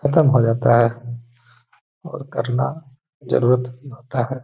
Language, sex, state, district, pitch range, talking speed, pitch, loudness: Hindi, male, Bihar, Gaya, 120-135 Hz, 120 wpm, 125 Hz, -19 LUFS